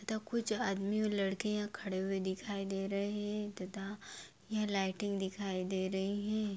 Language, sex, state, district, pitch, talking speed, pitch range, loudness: Hindi, female, Jharkhand, Sahebganj, 200 Hz, 175 wpm, 195-210 Hz, -37 LUFS